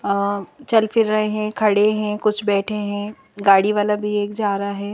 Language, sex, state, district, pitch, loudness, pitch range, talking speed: Hindi, female, Madhya Pradesh, Bhopal, 210 Hz, -19 LUFS, 205-215 Hz, 205 wpm